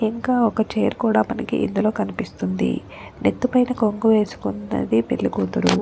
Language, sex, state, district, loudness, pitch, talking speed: Telugu, female, Andhra Pradesh, Chittoor, -21 LUFS, 215 Hz, 135 wpm